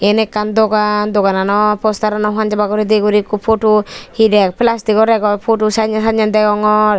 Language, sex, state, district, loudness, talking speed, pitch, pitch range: Chakma, female, Tripura, Dhalai, -13 LUFS, 190 wpm, 210 Hz, 210-220 Hz